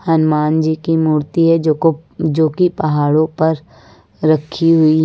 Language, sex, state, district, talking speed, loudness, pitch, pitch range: Hindi, female, Uttar Pradesh, Lucknow, 165 wpm, -15 LUFS, 160 Hz, 155-165 Hz